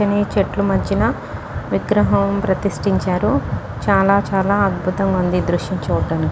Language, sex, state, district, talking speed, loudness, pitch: Telugu, female, Telangana, Nalgonda, 105 wpm, -18 LUFS, 185 Hz